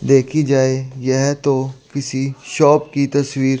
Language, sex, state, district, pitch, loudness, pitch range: Hindi, male, Chandigarh, Chandigarh, 135 Hz, -17 LUFS, 135-140 Hz